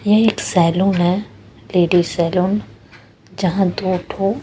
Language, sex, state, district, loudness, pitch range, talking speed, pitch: Hindi, female, Punjab, Pathankot, -17 LUFS, 165-195 Hz, 120 wpm, 180 Hz